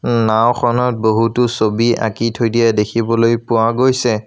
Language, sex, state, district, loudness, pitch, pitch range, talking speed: Assamese, male, Assam, Sonitpur, -15 LUFS, 115 Hz, 115-120 Hz, 125 wpm